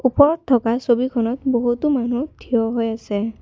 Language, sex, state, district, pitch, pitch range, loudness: Assamese, female, Assam, Kamrup Metropolitan, 240 Hz, 230-260 Hz, -20 LUFS